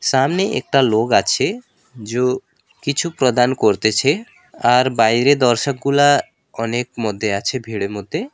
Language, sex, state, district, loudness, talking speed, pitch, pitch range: Bengali, male, West Bengal, Alipurduar, -17 LUFS, 115 wpm, 125 Hz, 115-140 Hz